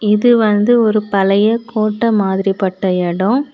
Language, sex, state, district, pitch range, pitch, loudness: Tamil, female, Tamil Nadu, Kanyakumari, 195-230 Hz, 210 Hz, -14 LUFS